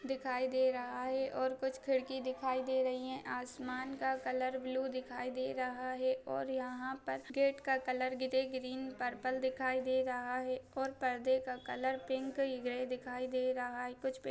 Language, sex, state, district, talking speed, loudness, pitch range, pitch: Hindi, female, Chhattisgarh, Raigarh, 185 wpm, -38 LUFS, 255-260 Hz, 255 Hz